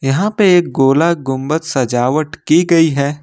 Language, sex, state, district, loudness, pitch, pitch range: Hindi, male, Jharkhand, Ranchi, -14 LUFS, 155 Hz, 135-170 Hz